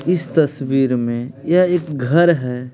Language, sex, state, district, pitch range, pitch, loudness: Hindi, male, Bihar, Patna, 125-170 Hz, 140 Hz, -17 LUFS